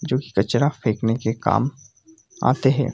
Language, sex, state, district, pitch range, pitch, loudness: Hindi, male, Bihar, Jamui, 115-140 Hz, 130 Hz, -21 LUFS